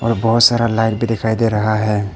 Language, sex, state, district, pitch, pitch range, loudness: Hindi, male, Arunachal Pradesh, Papum Pare, 115 Hz, 110-115 Hz, -15 LUFS